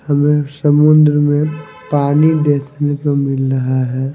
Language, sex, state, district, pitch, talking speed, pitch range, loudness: Hindi, male, Himachal Pradesh, Shimla, 145 Hz, 130 wpm, 140-150 Hz, -14 LUFS